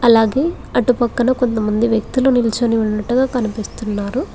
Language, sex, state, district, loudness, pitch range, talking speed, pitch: Telugu, female, Telangana, Mahabubabad, -17 LUFS, 220-250 Hz, 95 wpm, 235 Hz